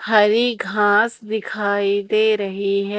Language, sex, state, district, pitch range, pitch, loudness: Hindi, female, Madhya Pradesh, Umaria, 200-220 Hz, 210 Hz, -19 LUFS